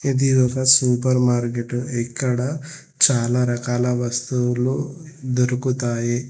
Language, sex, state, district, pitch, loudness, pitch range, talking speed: Telugu, male, Telangana, Hyderabad, 125 Hz, -20 LUFS, 120-130 Hz, 85 wpm